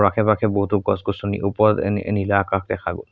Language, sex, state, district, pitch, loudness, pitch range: Assamese, male, Assam, Sonitpur, 100 Hz, -21 LUFS, 100-105 Hz